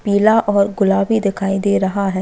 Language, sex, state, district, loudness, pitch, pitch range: Hindi, female, Chhattisgarh, Bastar, -16 LUFS, 200 Hz, 195-205 Hz